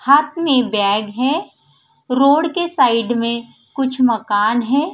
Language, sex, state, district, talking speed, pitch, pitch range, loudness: Hindi, female, Punjab, Fazilka, 135 wpm, 255 Hz, 230-285 Hz, -16 LUFS